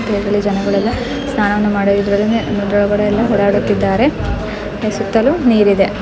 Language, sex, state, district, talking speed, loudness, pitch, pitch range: Kannada, female, Karnataka, Belgaum, 80 wpm, -15 LUFS, 205 Hz, 205-225 Hz